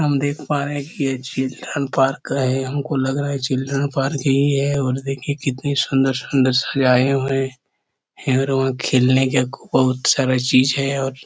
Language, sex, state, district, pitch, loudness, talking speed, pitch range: Hindi, male, Chhattisgarh, Korba, 135 Hz, -19 LUFS, 180 wpm, 130-140 Hz